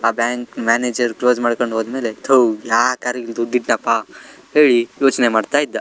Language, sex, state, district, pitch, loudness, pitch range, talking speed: Kannada, male, Karnataka, Shimoga, 120 Hz, -17 LUFS, 115-125 Hz, 165 wpm